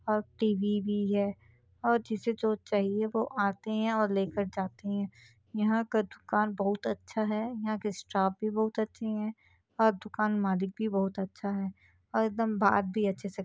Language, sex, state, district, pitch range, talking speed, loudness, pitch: Hindi, female, Chhattisgarh, Bastar, 195-220 Hz, 185 wpm, -31 LUFS, 210 Hz